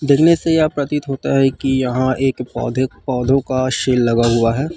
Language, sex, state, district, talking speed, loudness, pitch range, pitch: Chhattisgarhi, male, Chhattisgarh, Rajnandgaon, 200 wpm, -17 LUFS, 125-140 Hz, 135 Hz